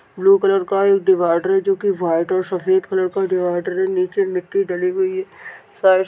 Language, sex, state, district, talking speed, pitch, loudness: Hindi, male, Chhattisgarh, Balrampur, 185 wpm, 195 Hz, -18 LUFS